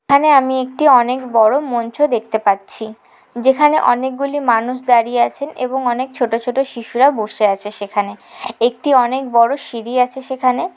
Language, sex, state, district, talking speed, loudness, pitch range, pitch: Bengali, female, West Bengal, Jalpaiguri, 160 wpm, -16 LUFS, 230-265 Hz, 250 Hz